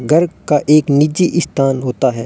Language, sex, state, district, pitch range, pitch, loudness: Hindi, male, Rajasthan, Bikaner, 135-160 Hz, 150 Hz, -14 LUFS